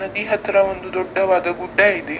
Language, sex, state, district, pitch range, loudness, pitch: Kannada, female, Karnataka, Dakshina Kannada, 185-205 Hz, -19 LUFS, 190 Hz